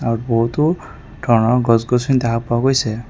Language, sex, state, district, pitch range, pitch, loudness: Assamese, male, Assam, Kamrup Metropolitan, 115-130 Hz, 120 Hz, -17 LUFS